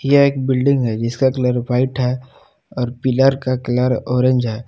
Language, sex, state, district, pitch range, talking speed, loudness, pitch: Hindi, male, Jharkhand, Palamu, 125-130 Hz, 180 wpm, -17 LUFS, 130 Hz